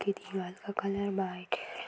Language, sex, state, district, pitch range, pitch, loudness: Hindi, female, Uttar Pradesh, Budaun, 190-200 Hz, 195 Hz, -35 LUFS